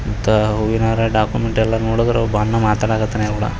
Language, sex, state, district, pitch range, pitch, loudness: Kannada, male, Karnataka, Bijapur, 105-115 Hz, 110 Hz, -17 LUFS